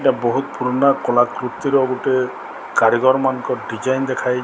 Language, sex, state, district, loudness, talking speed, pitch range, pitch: Odia, male, Odisha, Sambalpur, -18 LUFS, 150 wpm, 125-135 Hz, 130 Hz